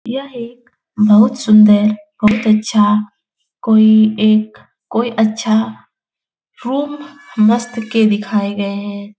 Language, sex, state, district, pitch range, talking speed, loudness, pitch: Hindi, female, Bihar, Jahanabad, 210-235 Hz, 110 wpm, -13 LUFS, 215 Hz